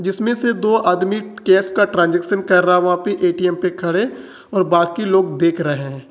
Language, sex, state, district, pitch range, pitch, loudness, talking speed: Hindi, male, Jharkhand, Ranchi, 175-200 Hz, 180 Hz, -17 LUFS, 205 wpm